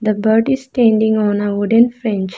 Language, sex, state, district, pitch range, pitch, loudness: English, female, Arunachal Pradesh, Lower Dibang Valley, 205-235 Hz, 220 Hz, -15 LUFS